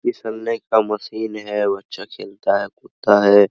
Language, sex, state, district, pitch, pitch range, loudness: Hindi, male, Bihar, Araria, 105 Hz, 100-110 Hz, -19 LUFS